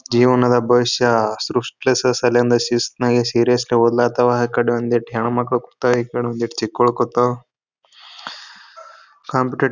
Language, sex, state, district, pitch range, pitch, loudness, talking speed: Kannada, male, Karnataka, Bijapur, 120-125 Hz, 120 Hz, -18 LUFS, 115 wpm